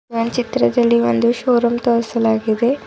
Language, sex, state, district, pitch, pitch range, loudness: Kannada, female, Karnataka, Bidar, 230 Hz, 220-240 Hz, -17 LUFS